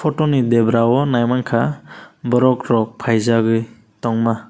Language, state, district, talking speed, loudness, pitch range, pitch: Kokborok, Tripura, West Tripura, 105 wpm, -17 LUFS, 115-125 Hz, 115 Hz